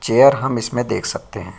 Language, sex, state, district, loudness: Hindi, male, Bihar, Bhagalpur, -18 LUFS